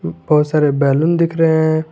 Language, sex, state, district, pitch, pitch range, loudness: Hindi, male, Jharkhand, Garhwa, 155 Hz, 145-160 Hz, -15 LUFS